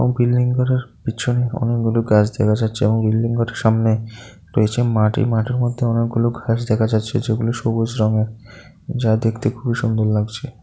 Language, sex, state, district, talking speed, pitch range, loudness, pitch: Bengali, male, Tripura, South Tripura, 150 wpm, 110-120 Hz, -19 LUFS, 115 Hz